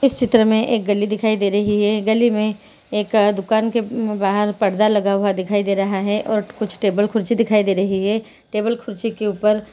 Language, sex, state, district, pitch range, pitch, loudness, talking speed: Hindi, female, Uttarakhand, Uttarkashi, 205-220 Hz, 210 Hz, -19 LUFS, 215 wpm